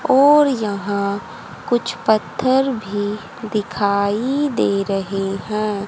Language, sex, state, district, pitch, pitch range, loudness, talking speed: Hindi, female, Haryana, Charkhi Dadri, 210 Hz, 200-245 Hz, -19 LUFS, 90 wpm